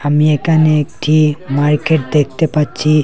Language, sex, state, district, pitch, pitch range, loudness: Bengali, male, Assam, Hailakandi, 150 Hz, 145-155 Hz, -13 LUFS